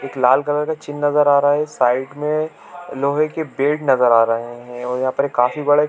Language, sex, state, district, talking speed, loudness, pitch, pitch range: Hindi, male, Chhattisgarh, Bilaspur, 255 wpm, -18 LUFS, 140 Hz, 125-150 Hz